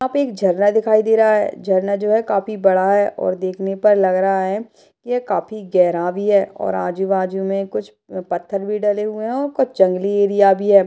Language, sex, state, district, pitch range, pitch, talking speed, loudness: Hindi, female, Uttarakhand, Uttarkashi, 190-215 Hz, 200 Hz, 230 wpm, -18 LUFS